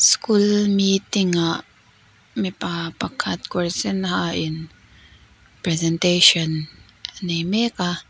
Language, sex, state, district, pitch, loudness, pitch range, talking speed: Mizo, female, Mizoram, Aizawl, 175 Hz, -20 LUFS, 165-195 Hz, 105 wpm